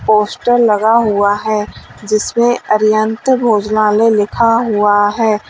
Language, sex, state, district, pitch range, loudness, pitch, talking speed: Hindi, female, Uttar Pradesh, Lalitpur, 210-230 Hz, -13 LUFS, 215 Hz, 120 wpm